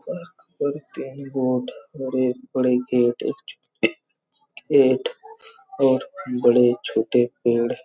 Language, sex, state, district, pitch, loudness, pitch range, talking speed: Hindi, male, Chhattisgarh, Raigarh, 130 Hz, -22 LUFS, 125-170 Hz, 90 wpm